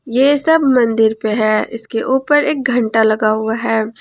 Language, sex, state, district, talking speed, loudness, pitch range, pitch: Hindi, female, Jharkhand, Ranchi, 180 wpm, -15 LUFS, 220-265 Hz, 230 Hz